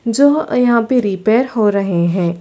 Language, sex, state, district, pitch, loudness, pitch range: Hindi, female, Chhattisgarh, Sarguja, 230 Hz, -14 LUFS, 195-250 Hz